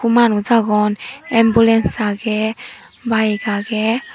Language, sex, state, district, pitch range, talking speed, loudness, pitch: Chakma, female, Tripura, Dhalai, 210-230 Hz, 85 wpm, -16 LUFS, 220 Hz